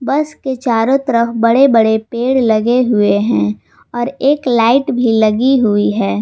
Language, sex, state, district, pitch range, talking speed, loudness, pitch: Hindi, female, Jharkhand, Ranchi, 220-265 Hz, 165 wpm, -13 LUFS, 235 Hz